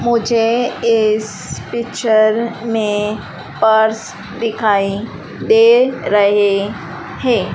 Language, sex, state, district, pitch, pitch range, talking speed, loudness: Hindi, female, Madhya Pradesh, Dhar, 220 Hz, 205-235 Hz, 70 wpm, -15 LUFS